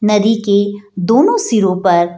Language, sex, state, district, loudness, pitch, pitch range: Hindi, female, Bihar, Jahanabad, -13 LUFS, 205 Hz, 185-220 Hz